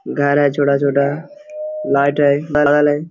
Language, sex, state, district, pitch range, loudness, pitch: Hindi, male, Jharkhand, Sahebganj, 140-155 Hz, -15 LUFS, 145 Hz